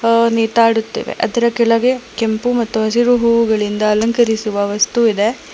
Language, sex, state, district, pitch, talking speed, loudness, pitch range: Kannada, female, Karnataka, Bangalore, 230 Hz, 130 wpm, -15 LUFS, 220-235 Hz